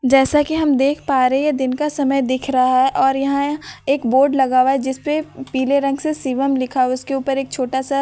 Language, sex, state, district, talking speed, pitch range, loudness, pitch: Hindi, female, Bihar, Katihar, 290 wpm, 260-280 Hz, -18 LUFS, 270 Hz